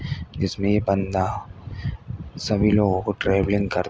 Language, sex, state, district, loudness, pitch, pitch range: Hindi, male, Uttar Pradesh, Hamirpur, -23 LUFS, 100 Hz, 95-105 Hz